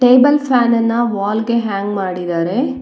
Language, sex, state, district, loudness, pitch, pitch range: Kannada, female, Karnataka, Bangalore, -15 LUFS, 230 Hz, 200-250 Hz